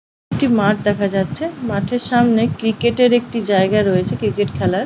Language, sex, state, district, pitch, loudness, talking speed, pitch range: Bengali, female, West Bengal, Paschim Medinipur, 215 Hz, -17 LUFS, 160 wpm, 200-240 Hz